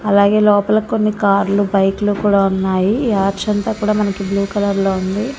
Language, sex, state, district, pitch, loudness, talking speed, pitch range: Telugu, female, Andhra Pradesh, Visakhapatnam, 200 Hz, -16 LUFS, 180 wpm, 195-210 Hz